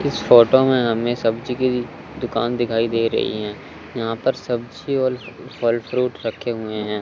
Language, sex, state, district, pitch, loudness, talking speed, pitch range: Hindi, male, Chandigarh, Chandigarh, 120 Hz, -20 LUFS, 170 wpm, 115-125 Hz